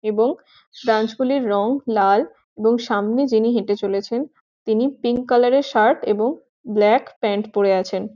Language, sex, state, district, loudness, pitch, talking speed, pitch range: Bengali, female, West Bengal, Jhargram, -19 LUFS, 225 Hz, 155 wpm, 205-250 Hz